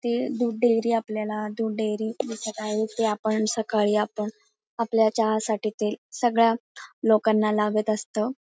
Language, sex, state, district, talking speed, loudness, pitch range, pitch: Marathi, female, Maharashtra, Pune, 135 wpm, -25 LUFS, 215-230 Hz, 220 Hz